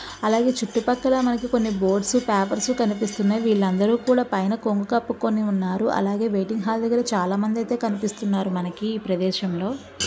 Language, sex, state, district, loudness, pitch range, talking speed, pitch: Telugu, female, Andhra Pradesh, Visakhapatnam, -23 LUFS, 200-235 Hz, 160 wpm, 220 Hz